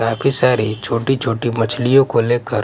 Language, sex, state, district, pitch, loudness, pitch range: Hindi, male, Punjab, Pathankot, 120 Hz, -17 LUFS, 115-130 Hz